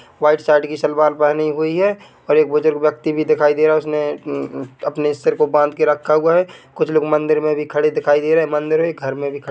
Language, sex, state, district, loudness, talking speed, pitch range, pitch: Hindi, male, Chhattisgarh, Bilaspur, -17 LUFS, 260 wpm, 150-155 Hz, 150 Hz